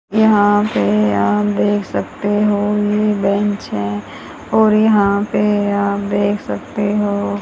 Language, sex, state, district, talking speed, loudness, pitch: Hindi, female, Haryana, Charkhi Dadri, 130 wpm, -16 LUFS, 205 Hz